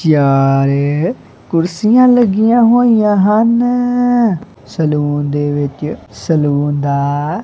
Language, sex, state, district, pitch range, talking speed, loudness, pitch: Punjabi, male, Punjab, Kapurthala, 145-230 Hz, 80 wpm, -13 LUFS, 165 Hz